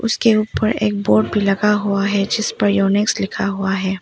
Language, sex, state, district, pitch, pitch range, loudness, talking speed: Hindi, female, Arunachal Pradesh, Papum Pare, 200 Hz, 195-210 Hz, -17 LUFS, 195 wpm